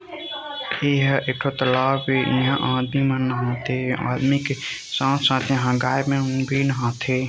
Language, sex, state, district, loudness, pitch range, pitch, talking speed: Chhattisgarhi, male, Chhattisgarh, Rajnandgaon, -22 LUFS, 130-140 Hz, 135 Hz, 150 wpm